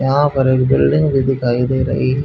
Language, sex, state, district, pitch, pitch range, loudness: Hindi, male, Haryana, Charkhi Dadri, 135 Hz, 130-140 Hz, -15 LUFS